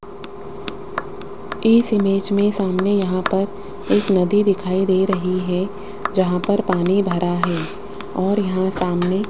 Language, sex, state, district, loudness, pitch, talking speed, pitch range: Hindi, female, Rajasthan, Jaipur, -19 LUFS, 195 Hz, 135 wpm, 185-205 Hz